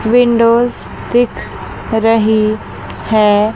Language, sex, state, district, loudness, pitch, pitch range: Hindi, female, Chandigarh, Chandigarh, -13 LUFS, 225 Hz, 215-235 Hz